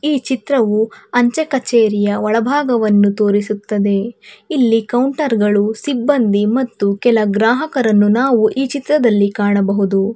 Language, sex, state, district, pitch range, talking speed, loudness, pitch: Kannada, female, Karnataka, Bangalore, 205-260 Hz, 100 wpm, -15 LUFS, 225 Hz